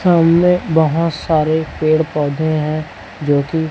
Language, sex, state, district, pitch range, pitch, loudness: Hindi, male, Chhattisgarh, Raipur, 155-165 Hz, 160 Hz, -16 LUFS